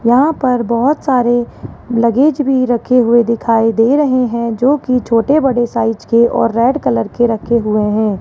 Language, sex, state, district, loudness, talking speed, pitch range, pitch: Hindi, female, Rajasthan, Jaipur, -13 LUFS, 185 wpm, 230-260 Hz, 240 Hz